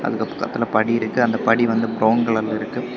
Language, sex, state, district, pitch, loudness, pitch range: Tamil, male, Tamil Nadu, Kanyakumari, 115 Hz, -20 LUFS, 110-115 Hz